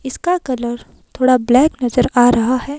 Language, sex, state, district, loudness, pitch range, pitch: Hindi, female, Himachal Pradesh, Shimla, -15 LUFS, 245-270 Hz, 255 Hz